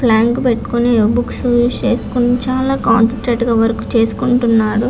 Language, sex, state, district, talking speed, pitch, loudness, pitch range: Telugu, female, Andhra Pradesh, Visakhapatnam, 110 wpm, 240 Hz, -14 LUFS, 230-245 Hz